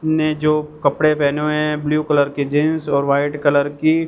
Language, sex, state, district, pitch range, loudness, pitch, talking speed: Hindi, male, Punjab, Fazilka, 145-155 Hz, -18 LUFS, 150 Hz, 205 wpm